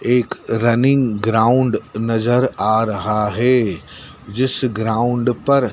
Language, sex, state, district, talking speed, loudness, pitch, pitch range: Hindi, male, Madhya Pradesh, Dhar, 105 wpm, -17 LUFS, 120 Hz, 110-125 Hz